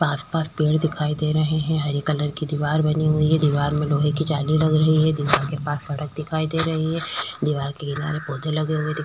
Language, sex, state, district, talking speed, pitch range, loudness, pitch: Hindi, female, Uttar Pradesh, Hamirpur, 245 wpm, 150-155 Hz, -22 LUFS, 155 Hz